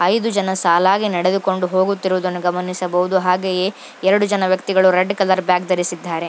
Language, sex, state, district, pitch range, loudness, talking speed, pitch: Kannada, female, Karnataka, Dharwad, 180-190 Hz, -17 LUFS, 145 wpm, 185 Hz